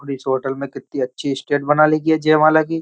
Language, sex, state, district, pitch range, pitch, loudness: Hindi, male, Uttar Pradesh, Jyotiba Phule Nagar, 135-155 Hz, 145 Hz, -18 LUFS